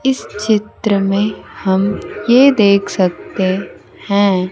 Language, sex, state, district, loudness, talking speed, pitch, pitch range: Hindi, female, Bihar, Kaimur, -15 LUFS, 105 wpm, 200 Hz, 190-210 Hz